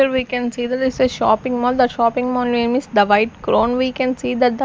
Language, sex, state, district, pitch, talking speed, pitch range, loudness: English, female, Chandigarh, Chandigarh, 250 Hz, 295 wpm, 240-255 Hz, -18 LUFS